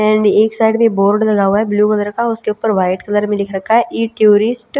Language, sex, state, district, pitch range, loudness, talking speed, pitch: Hindi, female, Chhattisgarh, Raipur, 205-225 Hz, -14 LUFS, 275 wpm, 215 Hz